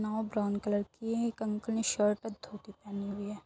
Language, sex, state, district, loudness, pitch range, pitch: Hindi, female, Uttar Pradesh, Muzaffarnagar, -34 LUFS, 205-220 Hz, 210 Hz